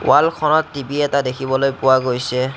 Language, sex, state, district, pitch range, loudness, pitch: Assamese, male, Assam, Kamrup Metropolitan, 130-145 Hz, -17 LUFS, 135 Hz